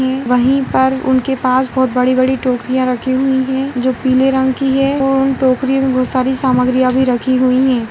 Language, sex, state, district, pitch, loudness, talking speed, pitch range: Hindi, female, Karnataka, Dakshina Kannada, 260 Hz, -14 LUFS, 195 wpm, 255-265 Hz